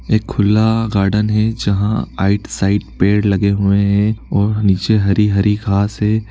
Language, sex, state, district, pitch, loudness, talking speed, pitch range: Hindi, male, Bihar, East Champaran, 105 Hz, -15 LUFS, 150 wpm, 100-110 Hz